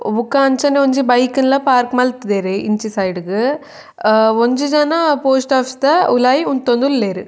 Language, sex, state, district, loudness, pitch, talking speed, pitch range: Tulu, female, Karnataka, Dakshina Kannada, -15 LUFS, 255 Hz, 140 wpm, 220-275 Hz